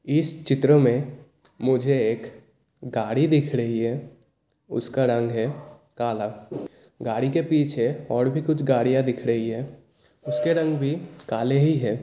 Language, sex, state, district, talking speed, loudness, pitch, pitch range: Hindi, male, Bihar, Kishanganj, 145 wpm, -24 LUFS, 135 Hz, 120-150 Hz